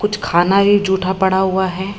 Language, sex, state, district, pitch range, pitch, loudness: Hindi, female, Bihar, Lakhisarai, 190-200 Hz, 190 Hz, -15 LUFS